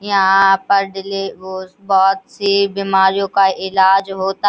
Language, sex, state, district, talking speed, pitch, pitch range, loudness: Hindi, female, Uttar Pradesh, Hamirpur, 135 wpm, 195 Hz, 190-200 Hz, -15 LUFS